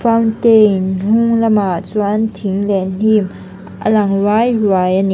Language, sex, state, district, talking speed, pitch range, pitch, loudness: Mizo, female, Mizoram, Aizawl, 150 wpm, 195-225 Hz, 210 Hz, -14 LUFS